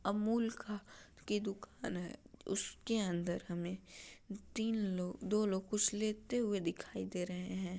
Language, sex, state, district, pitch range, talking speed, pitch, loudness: Hindi, female, Uttar Pradesh, Ghazipur, 180-215 Hz, 155 wpm, 200 Hz, -39 LUFS